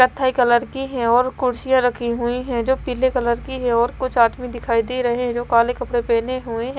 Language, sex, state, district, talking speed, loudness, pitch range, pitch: Hindi, female, Haryana, Rohtak, 240 wpm, -20 LUFS, 235-255 Hz, 245 Hz